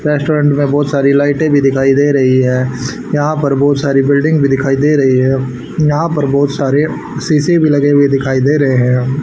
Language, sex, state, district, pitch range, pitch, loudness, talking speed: Hindi, male, Haryana, Charkhi Dadri, 135-145 Hz, 140 Hz, -12 LUFS, 210 wpm